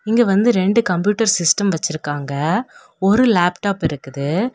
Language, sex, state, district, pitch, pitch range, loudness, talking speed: Tamil, female, Tamil Nadu, Kanyakumari, 195 Hz, 160-225 Hz, -17 LUFS, 120 wpm